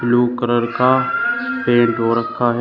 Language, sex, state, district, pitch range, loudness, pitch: Hindi, male, Uttar Pradesh, Shamli, 120-135 Hz, -17 LUFS, 120 Hz